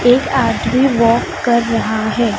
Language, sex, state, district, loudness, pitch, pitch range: Hindi, female, Chhattisgarh, Raipur, -15 LUFS, 235 Hz, 225-245 Hz